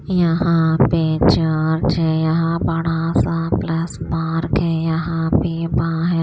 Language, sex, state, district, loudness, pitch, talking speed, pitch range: Hindi, female, Maharashtra, Washim, -18 LUFS, 165 Hz, 135 wpm, 160-165 Hz